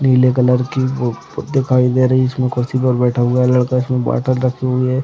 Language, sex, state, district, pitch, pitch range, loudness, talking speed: Hindi, male, Chhattisgarh, Raigarh, 125 Hz, 125-130 Hz, -16 LUFS, 225 wpm